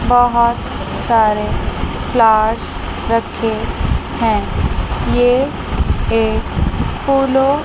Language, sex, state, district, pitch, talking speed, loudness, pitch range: Hindi, female, Chandigarh, Chandigarh, 235 Hz, 65 wpm, -16 LUFS, 225-255 Hz